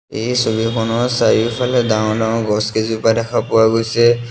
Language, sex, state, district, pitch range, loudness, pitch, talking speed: Assamese, male, Assam, Sonitpur, 110-120 Hz, -16 LUFS, 115 Hz, 110 wpm